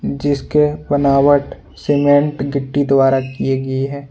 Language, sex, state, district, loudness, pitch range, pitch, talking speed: Hindi, male, Jharkhand, Ranchi, -16 LUFS, 135-145 Hz, 140 Hz, 115 wpm